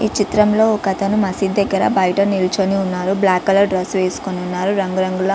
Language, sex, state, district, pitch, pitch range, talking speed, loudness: Telugu, female, Andhra Pradesh, Visakhapatnam, 195 Hz, 185-200 Hz, 170 wpm, -17 LUFS